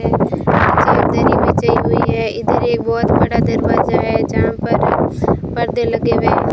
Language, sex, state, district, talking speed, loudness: Hindi, female, Rajasthan, Bikaner, 155 wpm, -15 LUFS